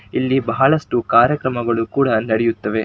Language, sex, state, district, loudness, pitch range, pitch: Kannada, male, Karnataka, Shimoga, -17 LUFS, 115-135 Hz, 120 Hz